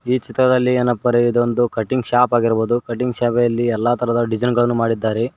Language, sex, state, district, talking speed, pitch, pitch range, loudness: Kannada, male, Karnataka, Koppal, 180 wpm, 120 Hz, 115-125 Hz, -18 LUFS